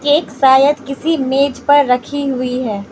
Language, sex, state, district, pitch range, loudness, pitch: Hindi, female, Manipur, Imphal West, 255-285 Hz, -14 LUFS, 275 Hz